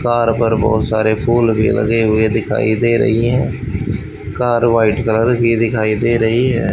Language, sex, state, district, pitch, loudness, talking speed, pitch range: Hindi, male, Haryana, Rohtak, 115 Hz, -15 LUFS, 180 wpm, 110-120 Hz